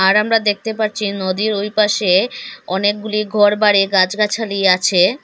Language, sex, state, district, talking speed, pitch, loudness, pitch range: Bengali, female, Assam, Hailakandi, 125 wpm, 205 Hz, -16 LUFS, 190-215 Hz